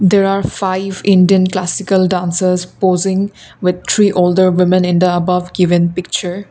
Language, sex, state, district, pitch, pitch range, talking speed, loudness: English, female, Assam, Kamrup Metropolitan, 185 Hz, 180-195 Hz, 145 wpm, -14 LUFS